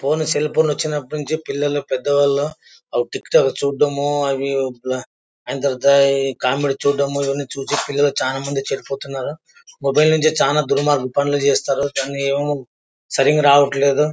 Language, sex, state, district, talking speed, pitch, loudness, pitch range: Telugu, male, Karnataka, Bellary, 125 wpm, 140 Hz, -18 LUFS, 135-145 Hz